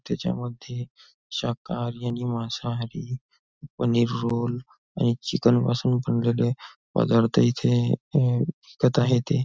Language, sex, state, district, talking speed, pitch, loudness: Marathi, male, Maharashtra, Nagpur, 100 wpm, 120 Hz, -25 LUFS